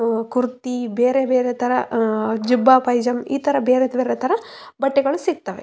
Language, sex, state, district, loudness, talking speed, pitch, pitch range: Kannada, female, Karnataka, Raichur, -19 LUFS, 170 wpm, 250 Hz, 240-270 Hz